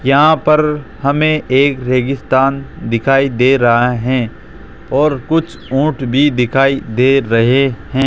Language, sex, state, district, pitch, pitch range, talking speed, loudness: Hindi, male, Rajasthan, Jaipur, 135 Hz, 125-140 Hz, 125 wpm, -13 LUFS